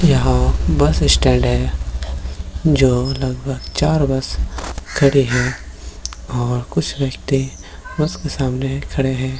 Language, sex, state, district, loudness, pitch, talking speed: Hindi, male, Chhattisgarh, Bilaspur, -18 LUFS, 125 Hz, 120 wpm